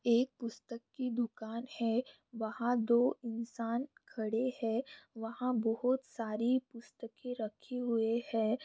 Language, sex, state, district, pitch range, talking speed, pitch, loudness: Hindi, female, Bihar, Bhagalpur, 225-250 Hz, 120 wpm, 235 Hz, -36 LUFS